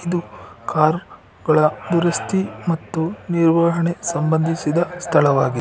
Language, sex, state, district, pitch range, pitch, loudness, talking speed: Kannada, male, Karnataka, Bangalore, 155-170 Hz, 170 Hz, -19 LUFS, 75 wpm